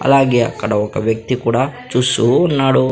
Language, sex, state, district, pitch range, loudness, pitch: Telugu, male, Andhra Pradesh, Sri Satya Sai, 115-135 Hz, -15 LUFS, 125 Hz